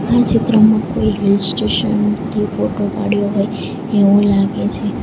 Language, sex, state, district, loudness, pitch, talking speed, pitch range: Gujarati, female, Gujarat, Valsad, -15 LUFS, 210 Hz, 145 wpm, 200-220 Hz